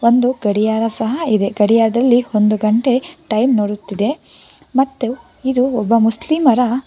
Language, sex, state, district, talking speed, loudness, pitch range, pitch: Kannada, female, Karnataka, Bangalore, 115 wpm, -16 LUFS, 215-255 Hz, 235 Hz